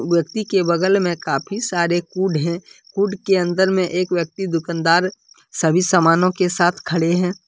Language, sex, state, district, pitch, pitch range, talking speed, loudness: Hindi, male, Jharkhand, Deoghar, 180 Hz, 170-190 Hz, 170 wpm, -19 LUFS